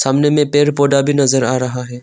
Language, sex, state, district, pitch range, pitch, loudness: Hindi, male, Arunachal Pradesh, Longding, 130-145 Hz, 140 Hz, -14 LUFS